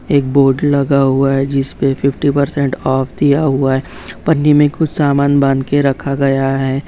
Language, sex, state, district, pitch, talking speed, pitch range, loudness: Hindi, male, West Bengal, Purulia, 140 Hz, 185 wpm, 135-145 Hz, -14 LUFS